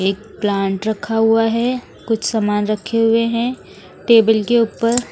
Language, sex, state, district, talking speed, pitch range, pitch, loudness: Hindi, female, Haryana, Rohtak, 150 wpm, 205-230 Hz, 225 Hz, -17 LUFS